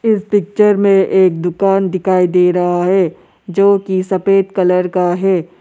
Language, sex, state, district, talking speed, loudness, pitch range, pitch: Hindi, male, Arunachal Pradesh, Lower Dibang Valley, 160 wpm, -13 LUFS, 180-195 Hz, 190 Hz